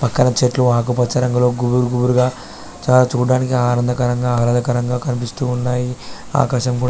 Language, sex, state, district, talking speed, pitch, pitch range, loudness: Telugu, male, Telangana, Karimnagar, 95 wpm, 125 Hz, 120-125 Hz, -17 LUFS